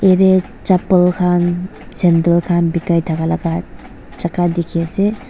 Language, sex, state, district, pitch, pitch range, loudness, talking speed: Nagamese, female, Nagaland, Dimapur, 175 Hz, 170-185 Hz, -16 LUFS, 125 wpm